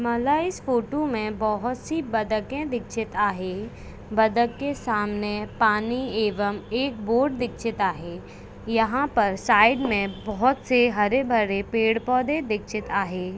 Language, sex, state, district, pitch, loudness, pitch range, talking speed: Hindi, female, Maharashtra, Pune, 225 Hz, -24 LUFS, 210-250 Hz, 125 wpm